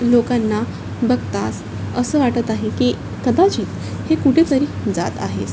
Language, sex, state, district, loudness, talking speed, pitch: Marathi, female, Maharashtra, Chandrapur, -19 LUFS, 130 wpm, 240 Hz